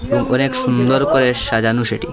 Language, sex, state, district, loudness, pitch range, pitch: Bengali, male, Assam, Hailakandi, -16 LUFS, 115-130 Hz, 125 Hz